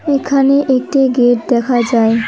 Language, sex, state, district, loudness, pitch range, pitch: Bengali, female, West Bengal, Cooch Behar, -13 LUFS, 240-275 Hz, 255 Hz